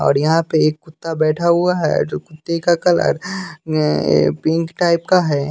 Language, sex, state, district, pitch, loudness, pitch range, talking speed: Hindi, male, Bihar, West Champaran, 160 Hz, -17 LUFS, 155-170 Hz, 175 wpm